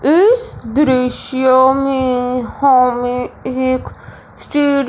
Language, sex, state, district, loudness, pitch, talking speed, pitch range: Hindi, male, Punjab, Fazilka, -14 LUFS, 260 Hz, 75 wpm, 250-280 Hz